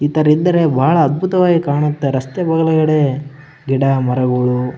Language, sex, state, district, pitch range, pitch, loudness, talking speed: Kannada, male, Karnataka, Bellary, 135-160 Hz, 145 Hz, -15 LUFS, 125 wpm